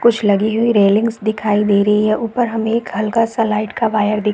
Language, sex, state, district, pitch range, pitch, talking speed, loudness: Hindi, female, Bihar, Saharsa, 210-225 Hz, 215 Hz, 235 wpm, -16 LUFS